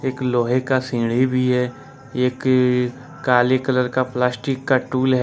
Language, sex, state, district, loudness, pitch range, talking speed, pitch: Hindi, male, Jharkhand, Ranchi, -20 LUFS, 125-130 Hz, 170 wpm, 130 Hz